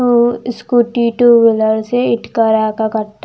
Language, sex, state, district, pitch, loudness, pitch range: Hindi, female, Punjab, Kapurthala, 235 Hz, -13 LUFS, 220-240 Hz